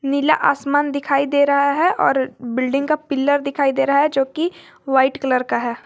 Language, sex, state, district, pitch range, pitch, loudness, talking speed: Hindi, female, Jharkhand, Garhwa, 270-290 Hz, 280 Hz, -18 LUFS, 205 wpm